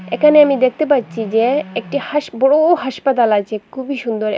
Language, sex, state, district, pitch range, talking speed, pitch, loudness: Bengali, female, Assam, Hailakandi, 225-285 Hz, 180 wpm, 260 Hz, -15 LUFS